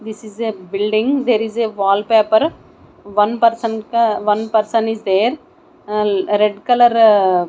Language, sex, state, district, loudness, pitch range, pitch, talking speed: English, female, Odisha, Nuapada, -16 LUFS, 210-230 Hz, 220 Hz, 150 wpm